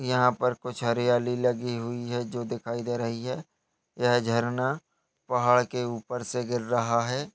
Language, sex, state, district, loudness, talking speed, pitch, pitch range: Hindi, male, Chhattisgarh, Jashpur, -28 LUFS, 205 wpm, 120 Hz, 120-125 Hz